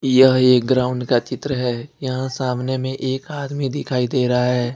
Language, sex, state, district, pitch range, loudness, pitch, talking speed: Hindi, male, Jharkhand, Ranchi, 125-130 Hz, -19 LUFS, 130 Hz, 190 wpm